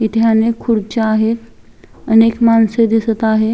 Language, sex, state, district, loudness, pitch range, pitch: Marathi, female, Maharashtra, Chandrapur, -14 LUFS, 220-230 Hz, 225 Hz